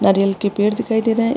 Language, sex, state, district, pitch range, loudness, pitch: Hindi, female, Maharashtra, Aurangabad, 205-225 Hz, -18 LUFS, 220 Hz